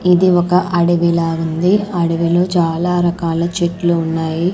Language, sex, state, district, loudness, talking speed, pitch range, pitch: Telugu, female, Andhra Pradesh, Manyam, -15 LUFS, 120 wpm, 165-180 Hz, 175 Hz